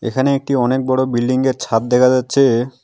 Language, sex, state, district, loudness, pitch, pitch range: Bengali, male, West Bengal, Alipurduar, -16 LUFS, 130 Hz, 125-130 Hz